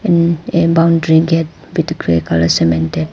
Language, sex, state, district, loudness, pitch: English, female, Arunachal Pradesh, Papum Pare, -14 LUFS, 160 Hz